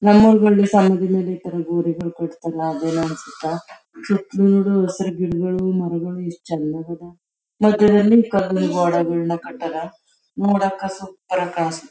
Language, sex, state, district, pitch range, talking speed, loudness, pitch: Kannada, female, Karnataka, Chamarajanagar, 170-195 Hz, 105 wpm, -19 LUFS, 180 Hz